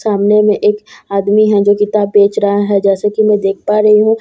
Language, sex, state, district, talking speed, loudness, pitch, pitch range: Hindi, female, Bihar, Katihar, 285 wpm, -11 LUFS, 210 Hz, 200-210 Hz